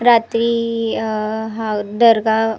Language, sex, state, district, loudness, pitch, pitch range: Marathi, female, Maharashtra, Nagpur, -17 LUFS, 225 Hz, 220-230 Hz